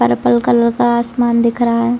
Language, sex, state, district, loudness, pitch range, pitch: Hindi, female, Bihar, Saran, -14 LUFS, 150-240 Hz, 235 Hz